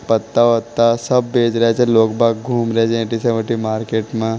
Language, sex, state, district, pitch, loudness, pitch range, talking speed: Marwari, male, Rajasthan, Nagaur, 115 Hz, -16 LUFS, 115-120 Hz, 205 wpm